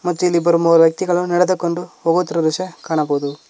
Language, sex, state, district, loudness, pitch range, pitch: Kannada, male, Karnataka, Koppal, -17 LUFS, 160-180 Hz, 170 Hz